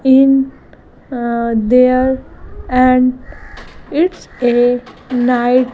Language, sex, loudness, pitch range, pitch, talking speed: English, female, -14 LUFS, 245-265 Hz, 255 Hz, 85 wpm